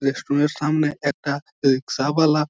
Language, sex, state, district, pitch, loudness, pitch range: Bengali, male, West Bengal, Malda, 145 Hz, -22 LUFS, 140-150 Hz